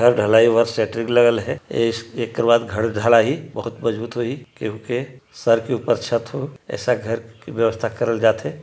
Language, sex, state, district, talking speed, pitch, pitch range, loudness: Chhattisgarhi, male, Chhattisgarh, Sarguja, 180 wpm, 115 Hz, 115-120 Hz, -20 LUFS